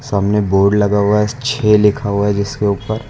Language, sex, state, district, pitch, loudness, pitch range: Hindi, male, Uttar Pradesh, Lucknow, 105 Hz, -15 LUFS, 100-105 Hz